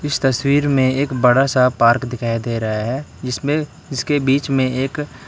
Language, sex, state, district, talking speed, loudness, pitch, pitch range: Hindi, male, Karnataka, Bangalore, 195 wpm, -18 LUFS, 135 Hz, 125-145 Hz